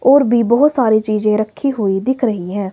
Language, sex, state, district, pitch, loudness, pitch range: Hindi, female, Himachal Pradesh, Shimla, 220 Hz, -15 LUFS, 210-260 Hz